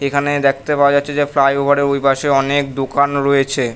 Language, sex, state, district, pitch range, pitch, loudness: Bengali, male, West Bengal, North 24 Parganas, 135-140 Hz, 140 Hz, -15 LUFS